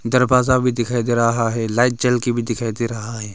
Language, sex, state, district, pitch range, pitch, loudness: Hindi, male, Arunachal Pradesh, Longding, 115-125 Hz, 120 Hz, -19 LUFS